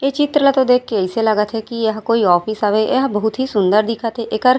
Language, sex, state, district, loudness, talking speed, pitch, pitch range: Chhattisgarhi, female, Chhattisgarh, Raigarh, -16 LUFS, 275 wpm, 225 Hz, 215-250 Hz